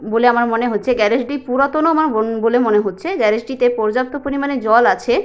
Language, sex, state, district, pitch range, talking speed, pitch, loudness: Bengali, female, West Bengal, Jalpaiguri, 225-275 Hz, 185 wpm, 245 Hz, -16 LUFS